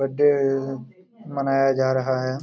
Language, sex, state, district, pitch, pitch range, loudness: Hindi, male, Jharkhand, Jamtara, 135 Hz, 130-140 Hz, -22 LUFS